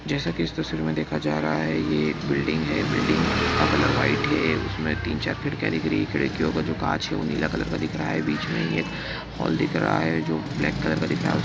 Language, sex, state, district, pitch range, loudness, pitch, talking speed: Hindi, male, Bihar, East Champaran, 75-80 Hz, -24 LUFS, 80 Hz, 245 wpm